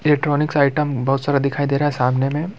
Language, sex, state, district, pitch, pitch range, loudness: Hindi, male, Bihar, Muzaffarpur, 145 Hz, 140-150 Hz, -19 LUFS